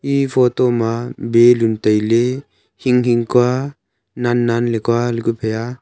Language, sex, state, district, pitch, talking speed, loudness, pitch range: Wancho, male, Arunachal Pradesh, Longding, 120 Hz, 125 wpm, -16 LUFS, 115-125 Hz